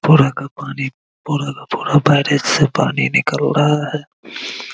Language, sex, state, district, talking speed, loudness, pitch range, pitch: Hindi, male, Bihar, Araria, 165 wpm, -17 LUFS, 140-150 Hz, 145 Hz